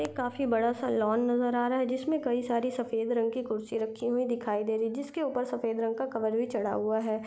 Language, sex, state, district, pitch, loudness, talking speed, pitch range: Hindi, female, Maharashtra, Chandrapur, 235 Hz, -30 LUFS, 255 wpm, 225-250 Hz